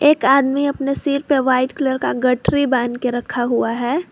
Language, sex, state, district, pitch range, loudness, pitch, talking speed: Hindi, female, Jharkhand, Garhwa, 250-280 Hz, -18 LUFS, 265 Hz, 205 wpm